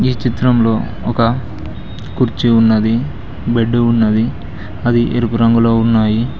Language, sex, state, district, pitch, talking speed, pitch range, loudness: Telugu, male, Telangana, Mahabubabad, 115 Hz, 105 wpm, 110-120 Hz, -14 LUFS